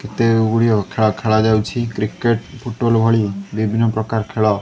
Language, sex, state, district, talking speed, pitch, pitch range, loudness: Odia, male, Odisha, Khordha, 140 wpm, 110 Hz, 105-115 Hz, -17 LUFS